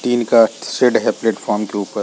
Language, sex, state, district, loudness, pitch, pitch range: Hindi, male, Chhattisgarh, Rajnandgaon, -16 LUFS, 110 Hz, 105-115 Hz